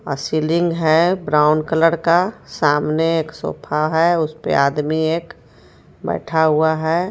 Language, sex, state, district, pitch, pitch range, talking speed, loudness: Hindi, female, Jharkhand, Ranchi, 160 Hz, 155-165 Hz, 125 wpm, -18 LUFS